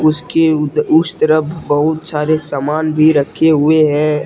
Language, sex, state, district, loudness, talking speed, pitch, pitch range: Hindi, male, Jharkhand, Deoghar, -13 LUFS, 140 wpm, 155 Hz, 150-160 Hz